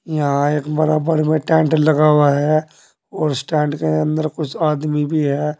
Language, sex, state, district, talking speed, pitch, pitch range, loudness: Hindi, male, Uttar Pradesh, Saharanpur, 180 wpm, 155 Hz, 150-155 Hz, -17 LUFS